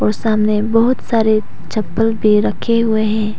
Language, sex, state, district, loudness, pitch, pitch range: Hindi, female, Arunachal Pradesh, Papum Pare, -15 LUFS, 215 Hz, 215-225 Hz